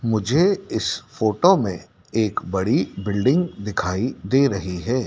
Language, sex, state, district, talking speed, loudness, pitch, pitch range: Hindi, male, Madhya Pradesh, Dhar, 130 wpm, -21 LUFS, 115 Hz, 100-135 Hz